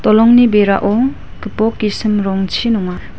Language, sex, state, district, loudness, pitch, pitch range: Garo, female, Meghalaya, West Garo Hills, -13 LUFS, 215 Hz, 195-230 Hz